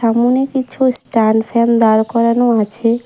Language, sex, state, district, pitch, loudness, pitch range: Bengali, female, West Bengal, Cooch Behar, 235 Hz, -14 LUFS, 225-245 Hz